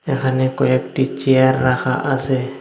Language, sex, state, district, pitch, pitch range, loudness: Bengali, male, Assam, Hailakandi, 130 Hz, 130-135 Hz, -17 LUFS